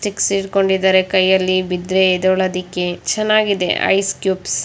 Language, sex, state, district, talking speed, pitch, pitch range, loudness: Kannada, female, Karnataka, Dakshina Kannada, 115 wpm, 190 Hz, 185-195 Hz, -16 LUFS